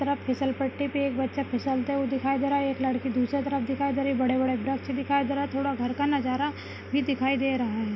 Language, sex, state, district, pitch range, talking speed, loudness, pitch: Hindi, female, Maharashtra, Nagpur, 260-280 Hz, 250 wpm, -27 LUFS, 270 Hz